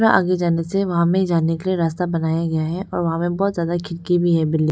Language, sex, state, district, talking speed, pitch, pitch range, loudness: Hindi, female, Arunachal Pradesh, Lower Dibang Valley, 280 wpm, 170 Hz, 165-180 Hz, -20 LUFS